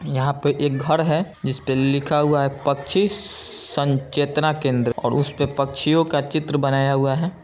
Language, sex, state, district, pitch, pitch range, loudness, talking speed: Hindi, male, Bihar, Saran, 145 Hz, 135-155 Hz, -21 LUFS, 175 wpm